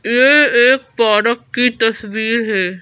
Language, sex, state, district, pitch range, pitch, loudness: Hindi, female, Madhya Pradesh, Bhopal, 220-250 Hz, 235 Hz, -13 LUFS